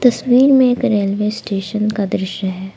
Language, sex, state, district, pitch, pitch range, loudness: Hindi, female, Jharkhand, Palamu, 210 Hz, 195-245 Hz, -16 LUFS